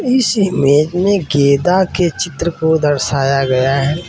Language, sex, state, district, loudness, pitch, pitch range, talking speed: Hindi, male, Uttar Pradesh, Varanasi, -14 LUFS, 155 Hz, 140-180 Hz, 145 wpm